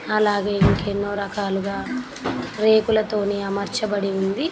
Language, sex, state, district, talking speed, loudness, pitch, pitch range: Telugu, female, Telangana, Nalgonda, 105 wpm, -22 LUFS, 205 Hz, 200-215 Hz